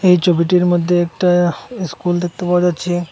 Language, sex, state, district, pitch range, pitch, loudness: Bengali, male, Assam, Hailakandi, 175-180 Hz, 175 Hz, -16 LUFS